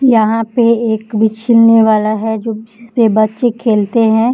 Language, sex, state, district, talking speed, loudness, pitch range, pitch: Hindi, female, Bihar, Jahanabad, 140 wpm, -12 LUFS, 220-230 Hz, 225 Hz